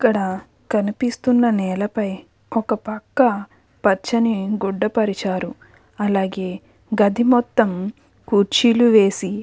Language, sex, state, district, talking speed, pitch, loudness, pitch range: Telugu, female, Andhra Pradesh, Krishna, 90 wpm, 210 Hz, -19 LUFS, 195-230 Hz